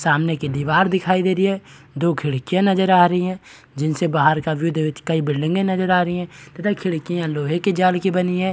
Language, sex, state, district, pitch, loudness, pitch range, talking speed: Hindi, male, Bihar, Kishanganj, 175 Hz, -19 LUFS, 155-185 Hz, 230 wpm